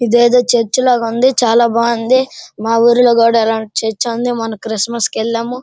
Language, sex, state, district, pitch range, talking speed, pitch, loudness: Telugu, female, Andhra Pradesh, Srikakulam, 225-245 Hz, 150 wpm, 235 Hz, -13 LUFS